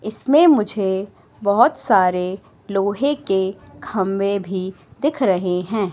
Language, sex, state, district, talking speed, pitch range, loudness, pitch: Hindi, female, Madhya Pradesh, Katni, 110 wpm, 190-220 Hz, -19 LUFS, 195 Hz